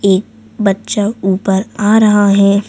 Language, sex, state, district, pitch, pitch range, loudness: Hindi, female, Madhya Pradesh, Bhopal, 200 Hz, 190-205 Hz, -13 LUFS